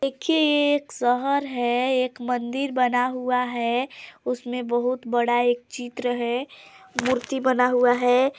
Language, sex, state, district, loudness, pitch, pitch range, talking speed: Hindi, female, Chhattisgarh, Balrampur, -23 LUFS, 250 Hz, 245-260 Hz, 145 wpm